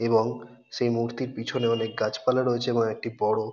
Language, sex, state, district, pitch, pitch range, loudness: Bengali, male, West Bengal, North 24 Parganas, 115 Hz, 110-125 Hz, -27 LUFS